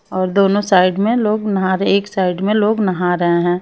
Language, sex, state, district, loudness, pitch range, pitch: Hindi, female, Chhattisgarh, Raipur, -16 LUFS, 180-205 Hz, 195 Hz